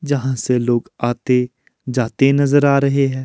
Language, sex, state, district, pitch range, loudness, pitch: Hindi, male, Himachal Pradesh, Shimla, 125-140 Hz, -17 LUFS, 130 Hz